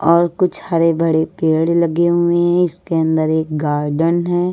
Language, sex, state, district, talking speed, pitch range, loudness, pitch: Hindi, female, Uttar Pradesh, Lucknow, 170 wpm, 160-175 Hz, -16 LUFS, 165 Hz